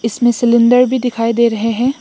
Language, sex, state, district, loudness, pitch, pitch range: Hindi, female, Assam, Hailakandi, -13 LUFS, 235 Hz, 230-245 Hz